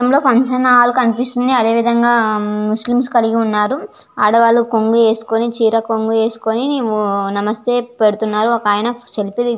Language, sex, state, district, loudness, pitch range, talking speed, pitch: Telugu, female, Andhra Pradesh, Visakhapatnam, -14 LUFS, 220-245 Hz, 125 wpm, 230 Hz